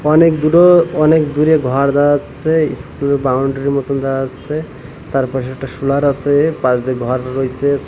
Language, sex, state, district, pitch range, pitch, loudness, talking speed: Bengali, male, Odisha, Malkangiri, 135-155 Hz, 140 Hz, -15 LUFS, 175 wpm